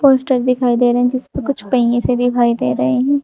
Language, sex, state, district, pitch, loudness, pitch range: Hindi, female, Uttar Pradesh, Saharanpur, 245 Hz, -15 LUFS, 240-260 Hz